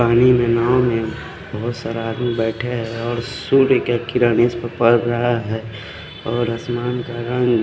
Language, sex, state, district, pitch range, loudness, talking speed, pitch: Hindi, male, Odisha, Khordha, 115-120 Hz, -19 LUFS, 175 wpm, 120 Hz